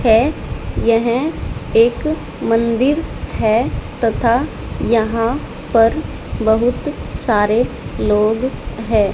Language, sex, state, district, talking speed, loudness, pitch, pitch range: Hindi, female, Haryana, Charkhi Dadri, 80 wpm, -17 LUFS, 230 Hz, 220-245 Hz